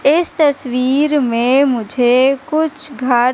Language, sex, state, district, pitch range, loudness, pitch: Hindi, female, Madhya Pradesh, Katni, 250-295 Hz, -15 LUFS, 270 Hz